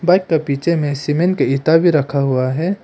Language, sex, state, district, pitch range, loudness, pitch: Hindi, male, Arunachal Pradesh, Papum Pare, 140-170 Hz, -16 LUFS, 155 Hz